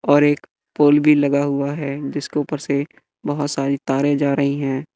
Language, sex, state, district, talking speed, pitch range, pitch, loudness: Hindi, male, Bihar, West Champaran, 195 wpm, 140-145 Hz, 145 Hz, -19 LUFS